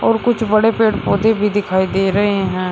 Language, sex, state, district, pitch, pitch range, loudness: Hindi, male, Uttar Pradesh, Shamli, 205 Hz, 195-220 Hz, -15 LUFS